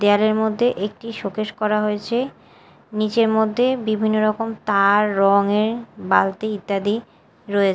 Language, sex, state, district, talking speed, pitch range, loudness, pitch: Bengali, female, Odisha, Malkangiri, 115 wpm, 205-220 Hz, -20 LUFS, 215 Hz